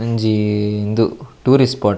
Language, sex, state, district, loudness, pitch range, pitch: Tulu, male, Karnataka, Dakshina Kannada, -17 LUFS, 105-115 Hz, 110 Hz